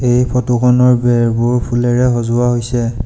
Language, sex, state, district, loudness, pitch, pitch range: Assamese, male, Assam, Sonitpur, -13 LUFS, 120 Hz, 120-125 Hz